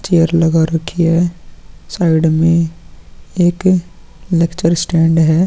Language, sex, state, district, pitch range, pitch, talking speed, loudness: Hindi, male, Uttarakhand, Tehri Garhwal, 160-170 Hz, 165 Hz, 110 wpm, -14 LUFS